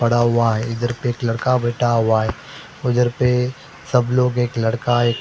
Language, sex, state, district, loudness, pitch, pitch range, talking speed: Hindi, male, Delhi, New Delhi, -19 LUFS, 120 Hz, 115-125 Hz, 205 wpm